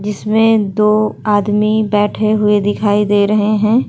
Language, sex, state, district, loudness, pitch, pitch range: Hindi, female, Uttar Pradesh, Hamirpur, -13 LUFS, 210 Hz, 205-215 Hz